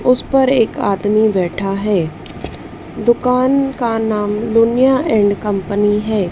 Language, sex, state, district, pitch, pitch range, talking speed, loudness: Hindi, female, Madhya Pradesh, Dhar, 215 Hz, 205-250 Hz, 125 wpm, -15 LUFS